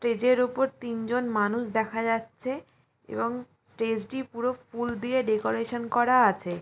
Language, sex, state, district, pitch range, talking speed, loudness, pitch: Bengali, female, West Bengal, Jalpaiguri, 225-250 Hz, 135 wpm, -27 LUFS, 235 Hz